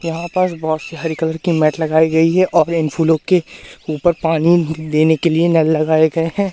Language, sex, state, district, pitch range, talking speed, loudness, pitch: Hindi, male, Madhya Pradesh, Katni, 160-170 Hz, 220 wpm, -16 LUFS, 160 Hz